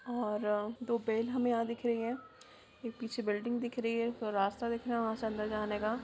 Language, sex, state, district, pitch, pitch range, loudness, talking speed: Hindi, female, Bihar, Purnia, 230 Hz, 215-240 Hz, -35 LUFS, 260 wpm